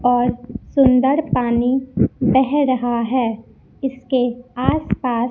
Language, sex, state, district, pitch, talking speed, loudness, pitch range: Hindi, female, Chhattisgarh, Raipur, 250 Hz, 100 wpm, -18 LUFS, 240-265 Hz